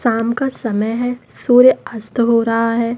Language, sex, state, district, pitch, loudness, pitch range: Hindi, female, Madhya Pradesh, Umaria, 230 Hz, -16 LUFS, 230-245 Hz